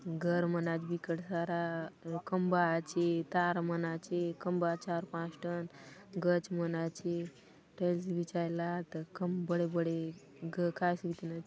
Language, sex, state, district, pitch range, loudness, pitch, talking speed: Halbi, female, Chhattisgarh, Bastar, 165-175 Hz, -35 LUFS, 170 Hz, 120 wpm